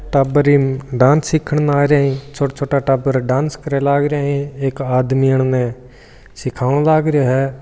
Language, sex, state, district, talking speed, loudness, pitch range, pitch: Marwari, male, Rajasthan, Churu, 155 wpm, -16 LUFS, 130-145 Hz, 140 Hz